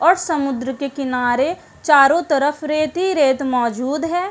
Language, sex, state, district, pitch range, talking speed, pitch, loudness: Hindi, female, Uttarakhand, Uttarkashi, 265-325 Hz, 155 wpm, 285 Hz, -18 LUFS